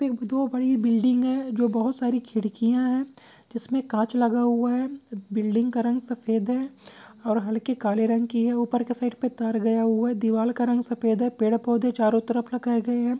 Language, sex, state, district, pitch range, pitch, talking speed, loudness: Hindi, male, Maharashtra, Chandrapur, 225-245 Hz, 240 Hz, 180 wpm, -24 LUFS